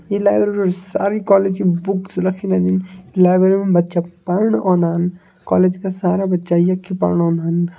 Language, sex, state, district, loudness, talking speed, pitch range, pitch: Kumaoni, male, Uttarakhand, Tehri Garhwal, -17 LUFS, 155 wpm, 175-195 Hz, 185 Hz